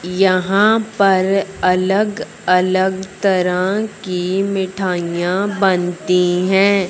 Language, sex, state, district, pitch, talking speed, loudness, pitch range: Hindi, male, Punjab, Fazilka, 190 Hz, 80 wpm, -16 LUFS, 180-195 Hz